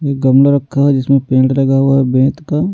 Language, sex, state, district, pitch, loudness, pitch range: Hindi, male, Delhi, New Delhi, 135 Hz, -12 LUFS, 135-140 Hz